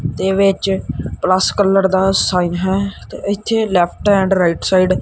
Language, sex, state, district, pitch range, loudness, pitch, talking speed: Punjabi, male, Punjab, Kapurthala, 185-195 Hz, -16 LUFS, 190 Hz, 165 wpm